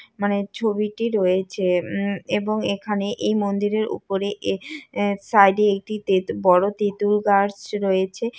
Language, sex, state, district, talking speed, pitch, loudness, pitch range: Bengali, female, West Bengal, Jalpaiguri, 135 wpm, 205 Hz, -22 LUFS, 195-210 Hz